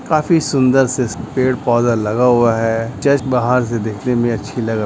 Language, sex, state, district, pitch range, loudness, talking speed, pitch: Hindi, male, Chhattisgarh, Bastar, 115-130 Hz, -16 LUFS, 185 wpm, 120 Hz